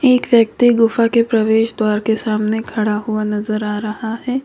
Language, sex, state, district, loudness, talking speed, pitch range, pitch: Hindi, female, Uttar Pradesh, Lalitpur, -16 LUFS, 190 wpm, 215-230 Hz, 220 Hz